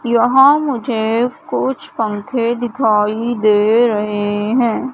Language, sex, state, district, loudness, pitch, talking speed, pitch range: Hindi, female, Madhya Pradesh, Katni, -15 LUFS, 235 Hz, 95 wpm, 215-255 Hz